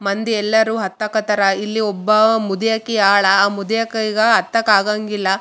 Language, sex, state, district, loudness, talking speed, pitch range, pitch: Kannada, female, Karnataka, Raichur, -16 LUFS, 100 wpm, 200-220 Hz, 215 Hz